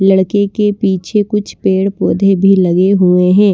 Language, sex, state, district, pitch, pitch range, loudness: Hindi, female, Maharashtra, Washim, 195 Hz, 190-205 Hz, -12 LUFS